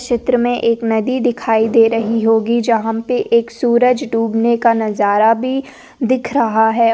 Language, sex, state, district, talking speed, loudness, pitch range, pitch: Hindi, female, Rajasthan, Nagaur, 165 wpm, -15 LUFS, 225-245 Hz, 230 Hz